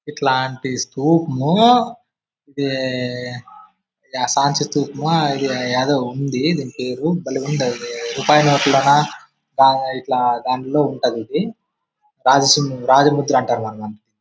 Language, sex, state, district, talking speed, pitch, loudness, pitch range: Telugu, male, Andhra Pradesh, Anantapur, 95 wpm, 135 Hz, -18 LUFS, 125-150 Hz